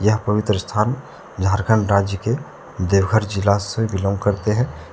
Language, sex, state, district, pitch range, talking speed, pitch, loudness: Hindi, male, Jharkhand, Deoghar, 100-110 Hz, 145 wpm, 105 Hz, -20 LUFS